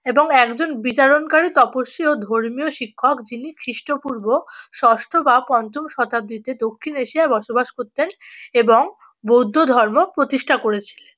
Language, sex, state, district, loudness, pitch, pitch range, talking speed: Bengali, female, West Bengal, North 24 Parganas, -18 LUFS, 260 Hz, 240-300 Hz, 120 wpm